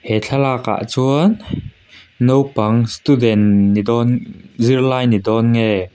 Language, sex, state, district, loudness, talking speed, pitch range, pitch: Mizo, male, Mizoram, Aizawl, -15 LUFS, 120 wpm, 105-130 Hz, 115 Hz